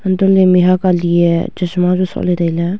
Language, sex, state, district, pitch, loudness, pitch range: Wancho, female, Arunachal Pradesh, Longding, 180 Hz, -13 LUFS, 175-185 Hz